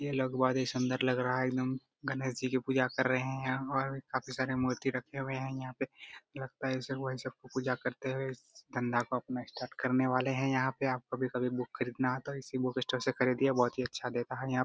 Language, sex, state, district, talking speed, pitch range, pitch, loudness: Hindi, female, Jharkhand, Jamtara, 230 wpm, 125-130 Hz, 130 Hz, -34 LUFS